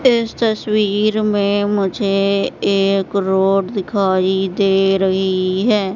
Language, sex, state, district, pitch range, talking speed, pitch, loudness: Hindi, female, Madhya Pradesh, Katni, 190-210 Hz, 100 wpm, 195 Hz, -16 LUFS